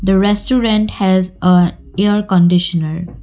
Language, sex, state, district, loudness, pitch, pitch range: English, female, Assam, Kamrup Metropolitan, -14 LUFS, 190 Hz, 175-205 Hz